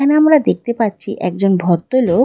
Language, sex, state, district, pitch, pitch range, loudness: Bengali, female, West Bengal, Dakshin Dinajpur, 230 Hz, 180-260 Hz, -15 LUFS